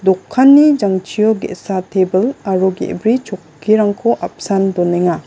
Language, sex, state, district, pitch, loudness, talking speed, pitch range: Garo, female, Meghalaya, West Garo Hills, 195 Hz, -14 LUFS, 100 wpm, 185-220 Hz